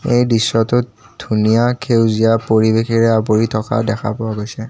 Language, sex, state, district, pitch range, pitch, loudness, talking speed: Assamese, male, Assam, Kamrup Metropolitan, 110-115 Hz, 115 Hz, -15 LUFS, 130 wpm